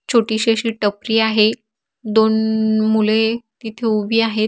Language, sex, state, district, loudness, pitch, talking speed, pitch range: Marathi, female, Maharashtra, Aurangabad, -17 LUFS, 220 Hz, 135 wpm, 220-225 Hz